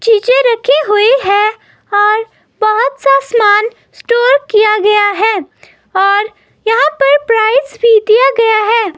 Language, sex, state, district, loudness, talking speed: Hindi, female, Himachal Pradesh, Shimla, -10 LUFS, 135 wpm